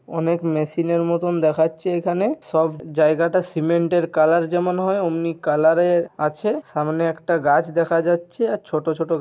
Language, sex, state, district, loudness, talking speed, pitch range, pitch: Bengali, male, West Bengal, Purulia, -20 LUFS, 155 wpm, 160-175 Hz, 165 Hz